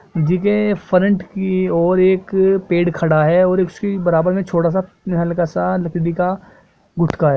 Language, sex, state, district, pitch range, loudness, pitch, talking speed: Hindi, male, Jharkhand, Jamtara, 170-190 Hz, -17 LUFS, 180 Hz, 165 wpm